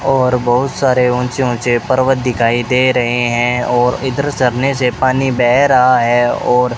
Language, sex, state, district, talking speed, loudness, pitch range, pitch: Hindi, male, Rajasthan, Bikaner, 175 wpm, -13 LUFS, 120-130 Hz, 125 Hz